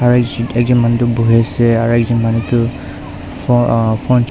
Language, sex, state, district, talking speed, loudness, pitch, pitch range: Nagamese, male, Nagaland, Dimapur, 155 wpm, -14 LUFS, 120 Hz, 115-120 Hz